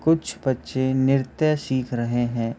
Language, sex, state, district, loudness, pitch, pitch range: Hindi, male, Bihar, Begusarai, -23 LUFS, 130 Hz, 120-135 Hz